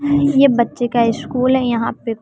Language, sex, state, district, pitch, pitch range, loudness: Hindi, female, Bihar, West Champaran, 245 Hz, 235-275 Hz, -16 LUFS